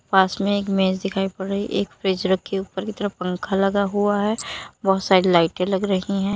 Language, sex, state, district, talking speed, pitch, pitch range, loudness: Hindi, female, Uttar Pradesh, Lalitpur, 215 wpm, 195 Hz, 190-200 Hz, -22 LUFS